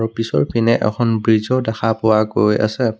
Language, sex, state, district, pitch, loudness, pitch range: Assamese, male, Assam, Kamrup Metropolitan, 110 Hz, -17 LUFS, 110-115 Hz